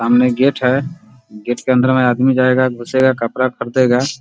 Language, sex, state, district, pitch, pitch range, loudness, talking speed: Hindi, male, Bihar, Muzaffarpur, 130 Hz, 120-130 Hz, -15 LUFS, 185 wpm